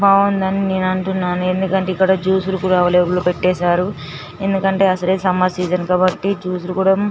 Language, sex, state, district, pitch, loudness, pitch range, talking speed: Telugu, female, Andhra Pradesh, Srikakulam, 185 Hz, -17 LUFS, 180-190 Hz, 150 wpm